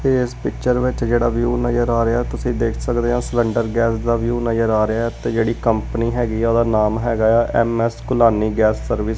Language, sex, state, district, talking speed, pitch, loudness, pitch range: Punjabi, male, Punjab, Kapurthala, 220 wpm, 115 Hz, -18 LUFS, 115-120 Hz